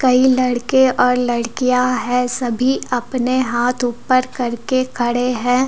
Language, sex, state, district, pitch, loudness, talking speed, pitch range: Hindi, female, Jharkhand, Deoghar, 250 Hz, -17 LUFS, 125 wpm, 245-255 Hz